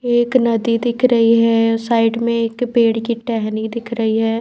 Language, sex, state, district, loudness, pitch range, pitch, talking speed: Hindi, female, Bihar, Patna, -16 LUFS, 225-235 Hz, 230 Hz, 190 wpm